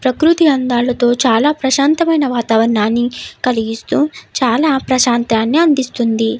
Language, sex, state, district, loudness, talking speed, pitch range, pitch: Telugu, female, Andhra Pradesh, Krishna, -14 LUFS, 85 wpm, 235-285 Hz, 250 Hz